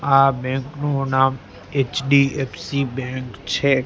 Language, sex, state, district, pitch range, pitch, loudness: Gujarati, male, Gujarat, Gandhinagar, 130-140 Hz, 135 Hz, -21 LUFS